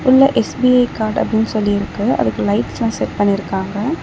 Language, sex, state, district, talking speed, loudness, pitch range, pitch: Tamil, female, Tamil Nadu, Chennai, 150 wpm, -16 LUFS, 205-250 Hz, 220 Hz